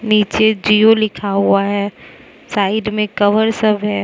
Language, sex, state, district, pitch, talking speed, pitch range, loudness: Hindi, female, Mizoram, Aizawl, 210 Hz, 150 wpm, 205-215 Hz, -15 LUFS